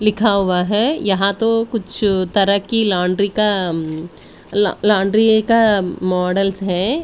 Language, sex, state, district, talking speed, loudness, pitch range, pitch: Hindi, female, Delhi, New Delhi, 120 wpm, -16 LUFS, 185-215 Hz, 200 Hz